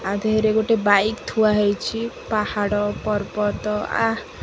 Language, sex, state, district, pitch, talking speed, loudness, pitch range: Odia, female, Odisha, Khordha, 210 Hz, 120 wpm, -21 LUFS, 205-220 Hz